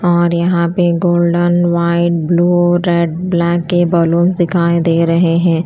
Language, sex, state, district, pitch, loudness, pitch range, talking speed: Hindi, female, Punjab, Kapurthala, 170 Hz, -13 LUFS, 170-175 Hz, 150 wpm